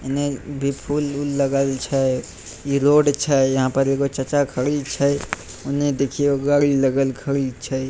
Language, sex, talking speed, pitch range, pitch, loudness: Maithili, male, 145 wpm, 135-145 Hz, 140 Hz, -20 LUFS